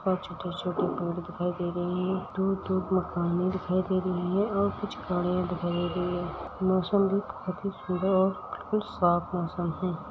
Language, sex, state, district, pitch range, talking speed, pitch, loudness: Hindi, female, Uttar Pradesh, Etah, 180-190 Hz, 185 wpm, 180 Hz, -29 LUFS